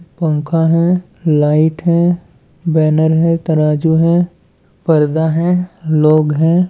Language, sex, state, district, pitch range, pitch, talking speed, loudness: Hindi, male, Andhra Pradesh, Chittoor, 155-170 Hz, 160 Hz, 105 wpm, -14 LUFS